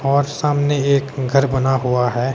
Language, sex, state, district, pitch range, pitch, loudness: Hindi, male, Himachal Pradesh, Shimla, 130-140 Hz, 135 Hz, -18 LUFS